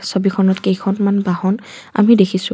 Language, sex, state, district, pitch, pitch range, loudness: Assamese, female, Assam, Kamrup Metropolitan, 195 Hz, 190-200 Hz, -16 LUFS